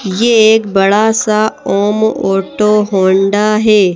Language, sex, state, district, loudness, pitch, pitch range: Hindi, female, Madhya Pradesh, Bhopal, -11 LUFS, 210 Hz, 195-220 Hz